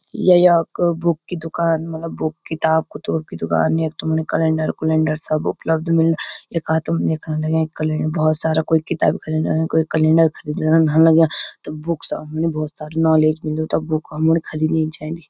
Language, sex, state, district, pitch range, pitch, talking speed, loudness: Garhwali, female, Uttarakhand, Uttarkashi, 155-165 Hz, 160 Hz, 180 wpm, -19 LUFS